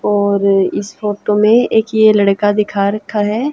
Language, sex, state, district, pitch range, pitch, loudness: Hindi, female, Haryana, Jhajjar, 200-215 Hz, 210 Hz, -13 LUFS